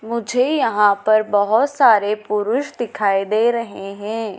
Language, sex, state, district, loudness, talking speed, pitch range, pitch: Hindi, female, Madhya Pradesh, Dhar, -18 LUFS, 135 wpm, 205-235 Hz, 215 Hz